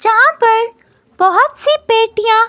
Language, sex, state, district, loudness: Hindi, female, Himachal Pradesh, Shimla, -12 LUFS